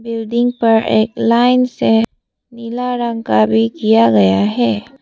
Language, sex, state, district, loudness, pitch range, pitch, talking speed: Hindi, female, Arunachal Pradesh, Papum Pare, -14 LUFS, 215-240 Hz, 230 Hz, 145 wpm